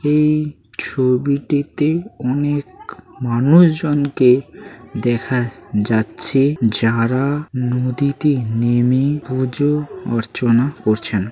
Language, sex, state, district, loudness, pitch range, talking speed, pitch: Bengali, male, West Bengal, Paschim Medinipur, -17 LUFS, 120-145 Hz, 65 wpm, 130 Hz